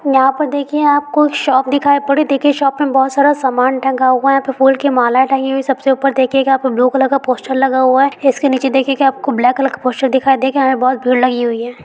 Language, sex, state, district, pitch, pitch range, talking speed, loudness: Hindi, female, Bihar, Gaya, 270 Hz, 260-275 Hz, 300 wpm, -13 LUFS